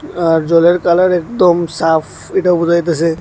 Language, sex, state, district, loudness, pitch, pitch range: Bengali, male, Tripura, West Tripura, -13 LUFS, 170 Hz, 165-180 Hz